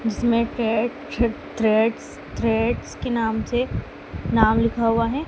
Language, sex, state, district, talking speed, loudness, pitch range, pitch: Hindi, female, Madhya Pradesh, Dhar, 135 wpm, -22 LUFS, 225-240 Hz, 230 Hz